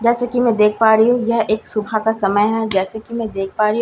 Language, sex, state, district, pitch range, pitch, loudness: Hindi, female, Bihar, Katihar, 210-230 Hz, 220 Hz, -17 LUFS